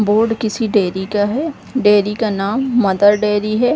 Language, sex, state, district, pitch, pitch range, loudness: Hindi, female, Bihar, Darbhanga, 210 Hz, 205-230 Hz, -16 LUFS